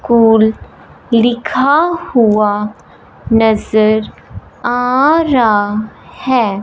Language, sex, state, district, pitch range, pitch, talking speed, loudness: Hindi, male, Punjab, Fazilka, 215-260 Hz, 230 Hz, 65 wpm, -12 LUFS